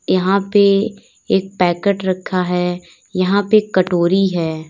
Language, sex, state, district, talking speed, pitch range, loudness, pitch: Hindi, female, Uttar Pradesh, Lalitpur, 130 wpm, 180-200 Hz, -16 LUFS, 185 Hz